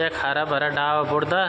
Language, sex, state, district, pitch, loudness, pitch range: Garhwali, male, Uttarakhand, Tehri Garhwal, 150 Hz, -22 LUFS, 145-160 Hz